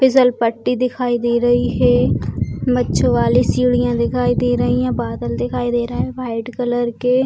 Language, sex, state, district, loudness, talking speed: Hindi, female, Bihar, Purnia, -17 LUFS, 175 wpm